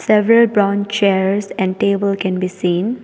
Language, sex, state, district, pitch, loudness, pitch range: English, female, Arunachal Pradesh, Papum Pare, 200 Hz, -16 LUFS, 190-210 Hz